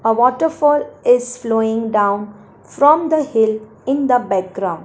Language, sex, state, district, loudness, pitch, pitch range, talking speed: English, female, Gujarat, Valsad, -16 LUFS, 235 Hz, 215-280 Hz, 135 wpm